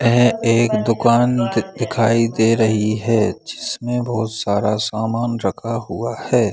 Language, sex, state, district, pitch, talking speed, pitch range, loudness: Hindi, male, Bihar, Saran, 115 Hz, 145 wpm, 110-120 Hz, -18 LUFS